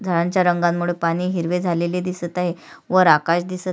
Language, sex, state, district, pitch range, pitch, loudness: Marathi, female, Maharashtra, Sindhudurg, 170-180 Hz, 175 Hz, -20 LUFS